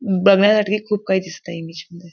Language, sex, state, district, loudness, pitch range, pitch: Marathi, female, Maharashtra, Chandrapur, -17 LUFS, 175-210 Hz, 190 Hz